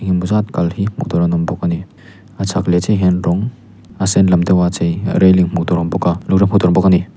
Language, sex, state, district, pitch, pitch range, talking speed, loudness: Mizo, male, Mizoram, Aizawl, 95 Hz, 85-100 Hz, 285 wpm, -15 LUFS